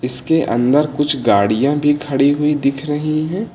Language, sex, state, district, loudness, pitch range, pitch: Hindi, male, Uttar Pradesh, Lucknow, -16 LUFS, 135-150 Hz, 145 Hz